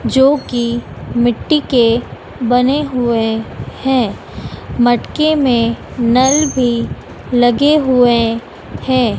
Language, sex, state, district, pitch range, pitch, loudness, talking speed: Hindi, female, Madhya Pradesh, Dhar, 235-265 Hz, 245 Hz, -14 LUFS, 90 wpm